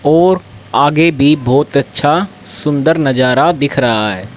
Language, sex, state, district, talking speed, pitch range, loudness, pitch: Hindi, male, Haryana, Rohtak, 135 wpm, 130-155 Hz, -12 LUFS, 145 Hz